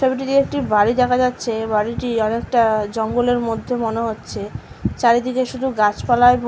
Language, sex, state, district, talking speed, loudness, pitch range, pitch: Bengali, female, West Bengal, Malda, 155 wpm, -19 LUFS, 225-250 Hz, 240 Hz